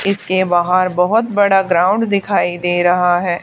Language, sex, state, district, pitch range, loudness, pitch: Hindi, female, Haryana, Charkhi Dadri, 175-200 Hz, -14 LUFS, 185 Hz